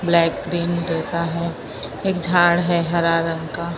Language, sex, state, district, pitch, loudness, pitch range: Hindi, female, Maharashtra, Mumbai Suburban, 170 Hz, -20 LUFS, 165-175 Hz